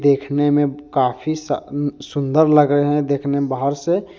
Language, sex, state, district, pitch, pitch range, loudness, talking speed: Hindi, male, Jharkhand, Deoghar, 145 Hz, 140-150 Hz, -18 LUFS, 145 wpm